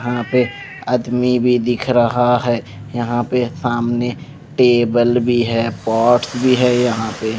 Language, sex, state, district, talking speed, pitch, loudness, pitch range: Hindi, male, Punjab, Pathankot, 155 wpm, 120 Hz, -16 LUFS, 120-125 Hz